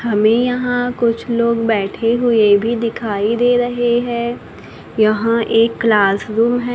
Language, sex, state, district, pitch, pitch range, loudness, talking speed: Hindi, female, Maharashtra, Gondia, 230 Hz, 220-240 Hz, -16 LUFS, 135 wpm